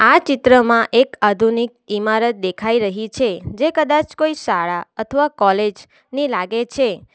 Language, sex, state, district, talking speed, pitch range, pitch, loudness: Gujarati, female, Gujarat, Valsad, 145 wpm, 210-275 Hz, 230 Hz, -17 LUFS